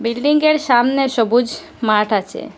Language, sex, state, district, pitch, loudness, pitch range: Bengali, female, Assam, Hailakandi, 240 Hz, -16 LUFS, 230-270 Hz